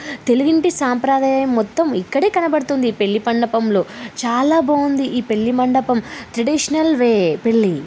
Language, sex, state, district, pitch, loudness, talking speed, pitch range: Telugu, female, Telangana, Karimnagar, 250 Hz, -17 LUFS, 105 wpm, 230-285 Hz